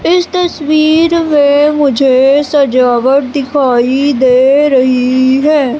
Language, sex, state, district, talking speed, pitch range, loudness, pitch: Hindi, female, Madhya Pradesh, Umaria, 95 wpm, 260-300 Hz, -9 LUFS, 280 Hz